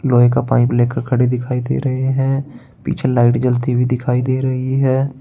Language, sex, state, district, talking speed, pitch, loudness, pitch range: Hindi, male, Uttar Pradesh, Saharanpur, 195 wpm, 125 Hz, -16 LUFS, 125-130 Hz